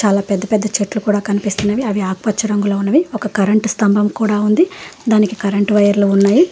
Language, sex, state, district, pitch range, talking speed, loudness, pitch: Telugu, female, Telangana, Hyderabad, 205-215 Hz, 175 wpm, -15 LUFS, 210 Hz